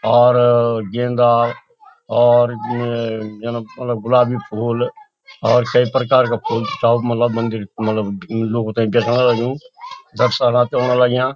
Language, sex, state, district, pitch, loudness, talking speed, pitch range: Garhwali, male, Uttarakhand, Uttarkashi, 120 Hz, -17 LUFS, 125 wpm, 115-125 Hz